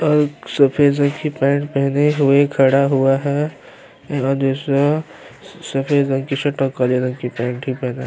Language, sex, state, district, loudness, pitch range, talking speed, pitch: Hindi, male, Chhattisgarh, Sukma, -18 LUFS, 135-145 Hz, 180 wpm, 140 Hz